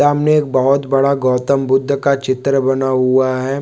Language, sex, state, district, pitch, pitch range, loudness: Hindi, male, West Bengal, North 24 Parganas, 135 Hz, 130-140 Hz, -15 LUFS